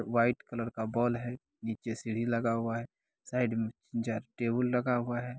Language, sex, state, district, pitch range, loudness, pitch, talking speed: Hindi, male, Bihar, Kishanganj, 115-120 Hz, -33 LUFS, 120 Hz, 180 wpm